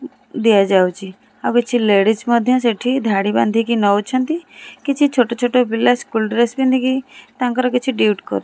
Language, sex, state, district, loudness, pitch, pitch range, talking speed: Odia, female, Odisha, Khordha, -17 LUFS, 240 Hz, 215-255 Hz, 150 wpm